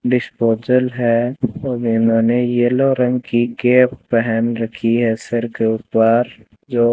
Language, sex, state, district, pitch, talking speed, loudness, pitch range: Hindi, male, Rajasthan, Bikaner, 120 Hz, 130 wpm, -17 LUFS, 115-125 Hz